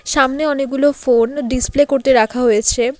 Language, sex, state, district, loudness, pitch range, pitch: Bengali, female, West Bengal, Alipurduar, -15 LUFS, 240-285 Hz, 265 Hz